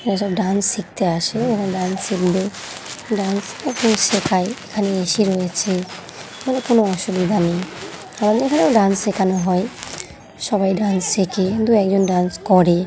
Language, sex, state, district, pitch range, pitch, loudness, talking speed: Bengali, female, West Bengal, Jhargram, 185-215 Hz, 195 Hz, -19 LUFS, 140 wpm